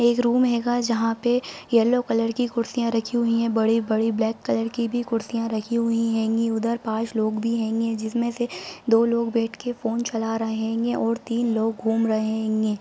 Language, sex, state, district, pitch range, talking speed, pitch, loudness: Hindi, female, Bihar, Saran, 225-235 Hz, 195 wpm, 230 Hz, -23 LUFS